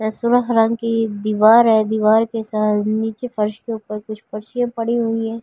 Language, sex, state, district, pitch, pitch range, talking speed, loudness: Hindi, female, Delhi, New Delhi, 220 Hz, 215-230 Hz, 155 wpm, -18 LUFS